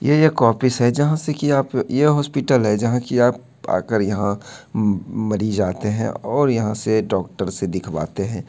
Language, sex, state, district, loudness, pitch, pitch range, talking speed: Hindi, male, Bihar, Begusarai, -20 LUFS, 115 Hz, 105-135 Hz, 185 wpm